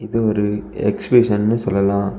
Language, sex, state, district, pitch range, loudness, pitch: Tamil, male, Tamil Nadu, Kanyakumari, 100-115 Hz, -18 LUFS, 105 Hz